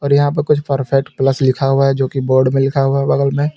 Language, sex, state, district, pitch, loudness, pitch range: Hindi, male, Uttar Pradesh, Lalitpur, 135 Hz, -15 LUFS, 135-140 Hz